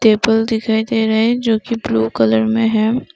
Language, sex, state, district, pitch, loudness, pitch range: Hindi, female, Nagaland, Kohima, 220 Hz, -16 LUFS, 215-225 Hz